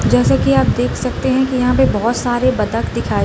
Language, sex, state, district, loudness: Hindi, female, Bihar, Samastipur, -15 LUFS